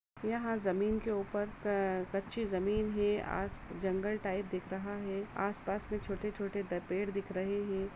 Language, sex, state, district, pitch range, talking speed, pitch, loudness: Hindi, female, Chhattisgarh, Kabirdham, 195-210 Hz, 160 wpm, 200 Hz, -36 LUFS